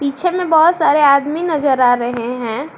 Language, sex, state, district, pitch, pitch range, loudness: Hindi, female, Jharkhand, Garhwa, 285 Hz, 250-320 Hz, -14 LUFS